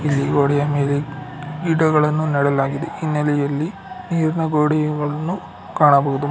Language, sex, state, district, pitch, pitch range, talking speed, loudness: Kannada, male, Karnataka, Bangalore, 150 Hz, 145-155 Hz, 85 wpm, -19 LUFS